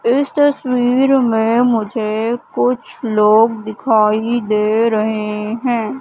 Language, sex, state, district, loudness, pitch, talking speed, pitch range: Hindi, female, Madhya Pradesh, Katni, -15 LUFS, 225 Hz, 100 wpm, 215-245 Hz